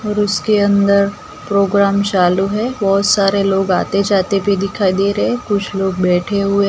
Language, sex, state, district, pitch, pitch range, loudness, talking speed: Hindi, female, Gujarat, Gandhinagar, 200 Hz, 195-205 Hz, -15 LUFS, 180 wpm